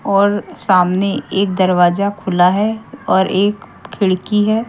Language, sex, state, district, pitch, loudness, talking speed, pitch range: Hindi, female, Haryana, Jhajjar, 195 Hz, -15 LUFS, 130 wpm, 185-210 Hz